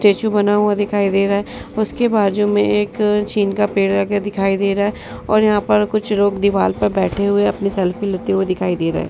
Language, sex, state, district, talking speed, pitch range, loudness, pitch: Hindi, female, Uttar Pradesh, Varanasi, 245 wpm, 195-210 Hz, -17 LUFS, 200 Hz